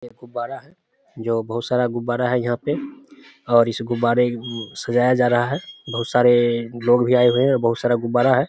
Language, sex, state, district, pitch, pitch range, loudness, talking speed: Hindi, male, Bihar, Samastipur, 120 Hz, 120-125 Hz, -20 LUFS, 205 wpm